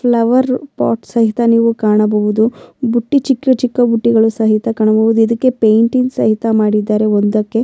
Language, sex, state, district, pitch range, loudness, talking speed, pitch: Kannada, female, Karnataka, Bellary, 215-240 Hz, -13 LUFS, 125 wpm, 225 Hz